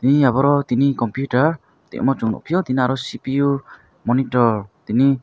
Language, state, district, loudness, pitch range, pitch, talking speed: Kokborok, Tripura, West Tripura, -19 LUFS, 125-140 Hz, 135 Hz, 135 wpm